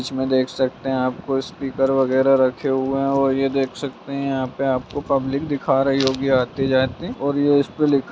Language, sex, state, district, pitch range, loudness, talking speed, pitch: Magahi, male, Bihar, Gaya, 130-140 Hz, -20 LUFS, 220 wpm, 135 Hz